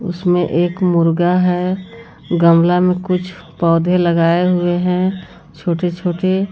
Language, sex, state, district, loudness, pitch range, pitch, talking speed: Hindi, female, Jharkhand, Garhwa, -16 LUFS, 170-180 Hz, 180 Hz, 120 wpm